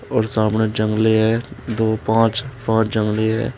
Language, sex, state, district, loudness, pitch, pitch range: Hindi, male, Uttar Pradesh, Shamli, -19 LUFS, 110 Hz, 110-115 Hz